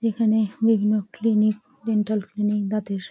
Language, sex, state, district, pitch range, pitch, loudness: Bengali, female, West Bengal, Jalpaiguri, 210-220 Hz, 215 Hz, -23 LUFS